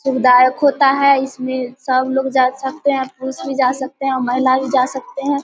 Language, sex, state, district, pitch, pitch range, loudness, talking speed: Hindi, female, Bihar, Vaishali, 265 Hz, 255-270 Hz, -16 LUFS, 210 wpm